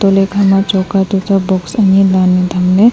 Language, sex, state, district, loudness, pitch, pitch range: Wancho, female, Arunachal Pradesh, Longding, -12 LUFS, 195 Hz, 185-195 Hz